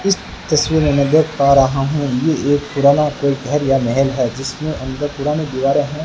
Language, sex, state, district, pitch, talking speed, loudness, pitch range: Hindi, male, Rajasthan, Bikaner, 145 Hz, 200 wpm, -16 LUFS, 135-150 Hz